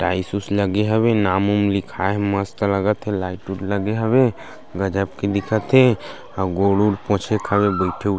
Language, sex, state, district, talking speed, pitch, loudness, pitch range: Chhattisgarhi, male, Chhattisgarh, Sarguja, 185 wpm, 100 Hz, -20 LUFS, 95-105 Hz